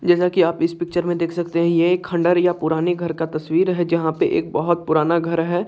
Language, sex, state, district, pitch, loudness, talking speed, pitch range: Hindi, male, Bihar, Saharsa, 170 Hz, -19 LUFS, 275 wpm, 165-175 Hz